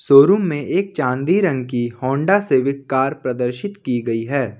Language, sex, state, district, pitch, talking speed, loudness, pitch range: Hindi, male, Jharkhand, Ranchi, 135 Hz, 170 wpm, -18 LUFS, 125-160 Hz